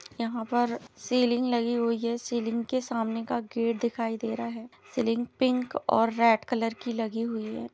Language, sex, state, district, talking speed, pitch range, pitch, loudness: Hindi, female, Chhattisgarh, Bilaspur, 185 wpm, 230-240 Hz, 235 Hz, -28 LUFS